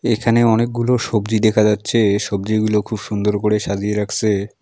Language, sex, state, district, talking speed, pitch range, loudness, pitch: Bengali, male, West Bengal, Alipurduar, 145 wpm, 105-110 Hz, -17 LUFS, 105 Hz